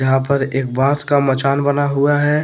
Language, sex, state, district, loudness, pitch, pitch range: Hindi, male, Jharkhand, Deoghar, -16 LUFS, 140 Hz, 135-145 Hz